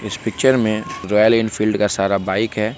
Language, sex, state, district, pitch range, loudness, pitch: Hindi, male, Bihar, Begusarai, 105-110 Hz, -18 LUFS, 105 Hz